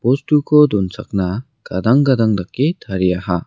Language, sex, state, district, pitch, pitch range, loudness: Garo, male, Meghalaya, West Garo Hills, 110 Hz, 95-140 Hz, -16 LUFS